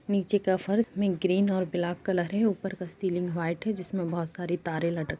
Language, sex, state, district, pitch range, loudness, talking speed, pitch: Hindi, female, Bihar, East Champaran, 175-195 Hz, -29 LUFS, 230 wpm, 185 Hz